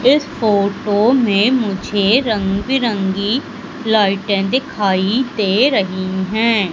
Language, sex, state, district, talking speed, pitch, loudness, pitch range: Hindi, female, Madhya Pradesh, Umaria, 100 wpm, 210 Hz, -16 LUFS, 200-245 Hz